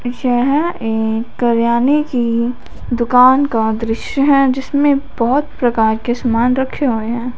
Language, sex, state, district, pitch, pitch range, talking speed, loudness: Hindi, female, Punjab, Fazilka, 245 Hz, 230-270 Hz, 130 wpm, -15 LUFS